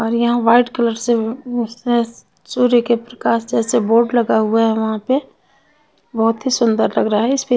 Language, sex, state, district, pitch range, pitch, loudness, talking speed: Hindi, female, Bihar, Patna, 225-245 Hz, 235 Hz, -17 LUFS, 190 wpm